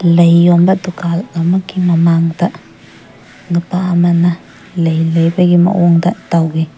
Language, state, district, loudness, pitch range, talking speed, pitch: Manipuri, Manipur, Imphal West, -12 LUFS, 170-180 Hz, 95 wpm, 170 Hz